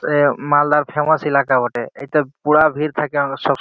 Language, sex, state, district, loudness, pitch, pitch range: Bengali, male, West Bengal, Malda, -17 LUFS, 145 Hz, 140-150 Hz